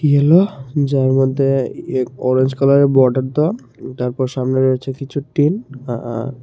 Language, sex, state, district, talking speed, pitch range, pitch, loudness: Bengali, male, Tripura, Unakoti, 140 wpm, 130-140 Hz, 135 Hz, -17 LUFS